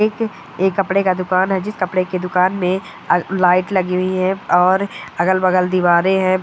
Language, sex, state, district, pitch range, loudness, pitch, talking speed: Hindi, female, Bihar, Gaya, 185-190 Hz, -17 LUFS, 185 Hz, 185 wpm